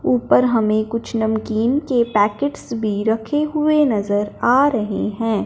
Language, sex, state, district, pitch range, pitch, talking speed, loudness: Hindi, male, Punjab, Fazilka, 215-265 Hz, 230 Hz, 145 wpm, -18 LUFS